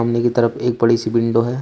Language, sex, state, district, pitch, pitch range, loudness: Hindi, male, Uttar Pradesh, Shamli, 115 Hz, 115-120 Hz, -17 LUFS